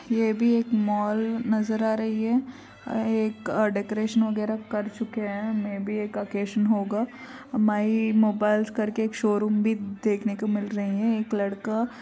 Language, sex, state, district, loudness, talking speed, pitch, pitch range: Hindi, female, Uttar Pradesh, Varanasi, -26 LUFS, 170 wpm, 220 Hz, 210-225 Hz